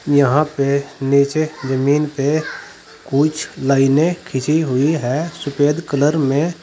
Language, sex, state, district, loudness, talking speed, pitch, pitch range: Hindi, male, Uttar Pradesh, Saharanpur, -17 LUFS, 120 wpm, 145 Hz, 140-155 Hz